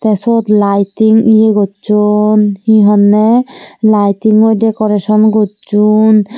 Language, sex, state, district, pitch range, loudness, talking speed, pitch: Chakma, female, Tripura, Dhalai, 210-220 Hz, -10 LUFS, 95 wpm, 215 Hz